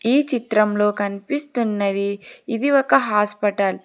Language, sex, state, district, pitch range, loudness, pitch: Telugu, female, Telangana, Hyderabad, 205-260 Hz, -20 LUFS, 215 Hz